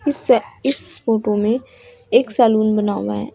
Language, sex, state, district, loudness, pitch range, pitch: Hindi, female, Uttar Pradesh, Saharanpur, -18 LUFS, 210-285 Hz, 225 Hz